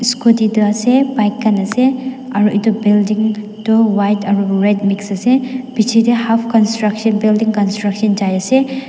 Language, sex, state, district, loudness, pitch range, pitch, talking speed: Nagamese, female, Nagaland, Dimapur, -14 LUFS, 205-235 Hz, 220 Hz, 150 wpm